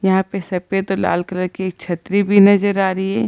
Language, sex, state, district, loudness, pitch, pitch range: Hindi, female, Bihar, Gaya, -17 LUFS, 190 Hz, 185-200 Hz